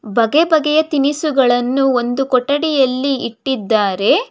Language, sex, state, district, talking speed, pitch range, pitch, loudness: Kannada, female, Karnataka, Bangalore, 85 wpm, 245-295 Hz, 270 Hz, -15 LUFS